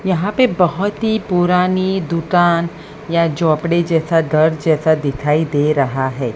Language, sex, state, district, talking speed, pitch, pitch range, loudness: Hindi, female, Maharashtra, Mumbai Suburban, 140 wpm, 165 Hz, 155-180 Hz, -16 LUFS